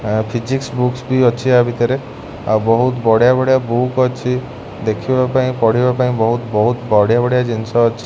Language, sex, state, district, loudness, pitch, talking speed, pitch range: Odia, male, Odisha, Khordha, -15 LUFS, 120 Hz, 155 wpm, 115-125 Hz